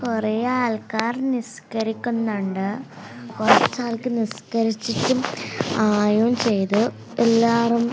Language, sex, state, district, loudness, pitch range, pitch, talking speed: Malayalam, female, Kerala, Kasaragod, -22 LUFS, 215-240 Hz, 230 Hz, 60 wpm